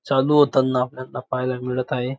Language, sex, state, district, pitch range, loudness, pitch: Marathi, male, Maharashtra, Dhule, 125-135 Hz, -21 LUFS, 130 Hz